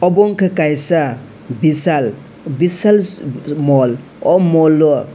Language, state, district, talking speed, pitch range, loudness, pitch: Kokborok, Tripura, West Tripura, 105 wpm, 140-180 Hz, -14 LUFS, 155 Hz